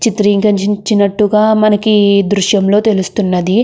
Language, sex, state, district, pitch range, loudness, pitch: Telugu, female, Andhra Pradesh, Krishna, 200-215 Hz, -11 LUFS, 205 Hz